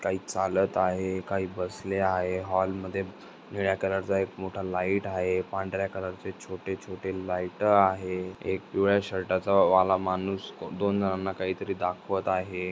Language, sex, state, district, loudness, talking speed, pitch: Marathi, male, Maharashtra, Dhule, -28 LUFS, 150 wpm, 95 Hz